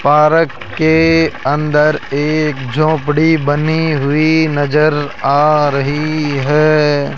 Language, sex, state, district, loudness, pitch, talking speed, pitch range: Hindi, male, Rajasthan, Jaipur, -13 LUFS, 150 Hz, 90 wpm, 145-155 Hz